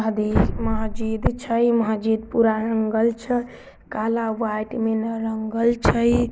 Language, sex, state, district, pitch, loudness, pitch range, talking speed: Maithili, female, Bihar, Samastipur, 225 Hz, -22 LUFS, 220-230 Hz, 135 wpm